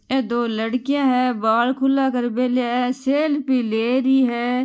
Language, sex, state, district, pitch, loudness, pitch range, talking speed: Marwari, female, Rajasthan, Nagaur, 250 Hz, -20 LUFS, 240-265 Hz, 165 wpm